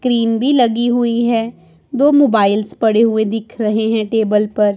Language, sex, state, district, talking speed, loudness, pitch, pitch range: Hindi, male, Punjab, Pathankot, 175 wpm, -15 LUFS, 225 Hz, 215-240 Hz